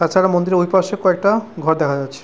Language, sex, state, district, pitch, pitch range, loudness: Bengali, male, West Bengal, Purulia, 180 Hz, 160-190 Hz, -17 LUFS